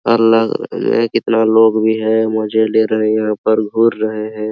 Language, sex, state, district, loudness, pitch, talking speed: Hindi, male, Bihar, Araria, -14 LUFS, 110 Hz, 175 wpm